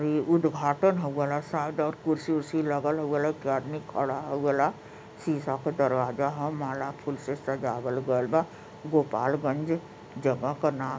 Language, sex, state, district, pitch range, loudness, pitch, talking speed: Bhojpuri, male, Uttar Pradesh, Varanasi, 135-155 Hz, -28 LUFS, 145 Hz, 185 wpm